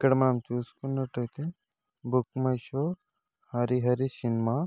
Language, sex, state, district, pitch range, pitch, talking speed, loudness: Telugu, male, Andhra Pradesh, Guntur, 120-140 Hz, 130 Hz, 105 wpm, -30 LUFS